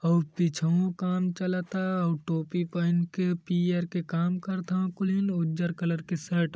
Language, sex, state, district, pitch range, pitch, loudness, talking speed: Hindi, male, Uttar Pradesh, Gorakhpur, 170-185 Hz, 175 Hz, -28 LUFS, 175 wpm